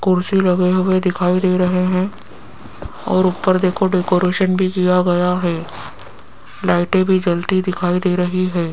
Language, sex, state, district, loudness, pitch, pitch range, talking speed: Hindi, female, Rajasthan, Jaipur, -17 LUFS, 185 Hz, 180-185 Hz, 150 wpm